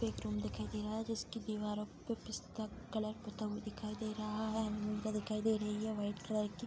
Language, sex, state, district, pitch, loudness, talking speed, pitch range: Hindi, female, Bihar, Bhagalpur, 215 Hz, -41 LUFS, 225 wpm, 210-220 Hz